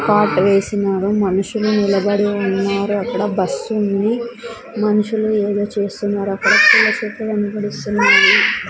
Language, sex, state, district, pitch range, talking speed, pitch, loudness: Telugu, female, Andhra Pradesh, Sri Satya Sai, 200-215 Hz, 95 wpm, 205 Hz, -16 LUFS